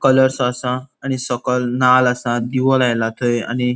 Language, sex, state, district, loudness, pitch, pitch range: Konkani, male, Goa, North and South Goa, -18 LUFS, 125 Hz, 120-130 Hz